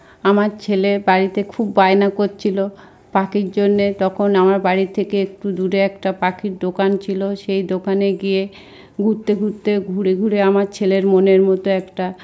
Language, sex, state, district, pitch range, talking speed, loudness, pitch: Bengali, female, West Bengal, North 24 Parganas, 190-200 Hz, 150 wpm, -17 LUFS, 195 Hz